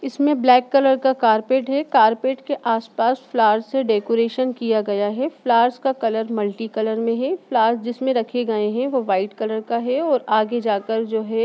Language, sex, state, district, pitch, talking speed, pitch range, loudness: Hindi, female, Bihar, Sitamarhi, 235 Hz, 195 wpm, 220-260 Hz, -20 LUFS